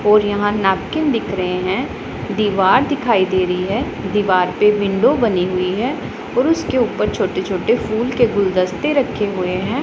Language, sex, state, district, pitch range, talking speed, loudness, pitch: Hindi, female, Punjab, Pathankot, 185-240 Hz, 170 wpm, -17 LUFS, 205 Hz